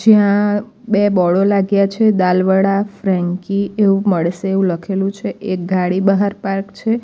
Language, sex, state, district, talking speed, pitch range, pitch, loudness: Gujarati, female, Gujarat, Valsad, 145 wpm, 185-205 Hz, 195 Hz, -16 LUFS